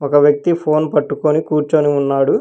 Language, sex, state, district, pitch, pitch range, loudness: Telugu, male, Telangana, Hyderabad, 150 Hz, 145-155 Hz, -15 LUFS